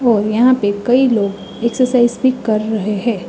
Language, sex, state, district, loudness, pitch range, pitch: Hindi, female, Uttar Pradesh, Hamirpur, -15 LUFS, 210-245 Hz, 235 Hz